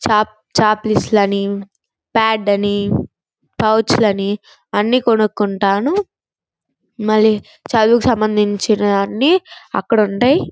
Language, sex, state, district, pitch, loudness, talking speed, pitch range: Telugu, female, Andhra Pradesh, Guntur, 215 Hz, -16 LUFS, 75 wpm, 205-230 Hz